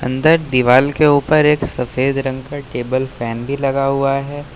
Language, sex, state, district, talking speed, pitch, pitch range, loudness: Hindi, male, Uttar Pradesh, Lucknow, 185 wpm, 135 Hz, 130-145 Hz, -16 LUFS